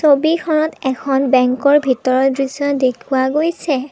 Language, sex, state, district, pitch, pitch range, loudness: Assamese, female, Assam, Kamrup Metropolitan, 275 Hz, 260-295 Hz, -16 LUFS